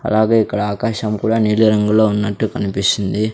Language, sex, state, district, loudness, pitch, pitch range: Telugu, male, Andhra Pradesh, Sri Satya Sai, -16 LUFS, 105 Hz, 105-110 Hz